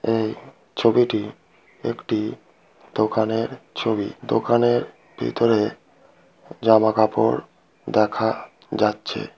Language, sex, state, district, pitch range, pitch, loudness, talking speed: Bengali, female, West Bengal, Kolkata, 110-115 Hz, 110 Hz, -22 LUFS, 70 wpm